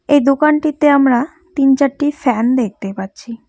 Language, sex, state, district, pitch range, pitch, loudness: Bengali, female, West Bengal, Cooch Behar, 240-290 Hz, 275 Hz, -14 LUFS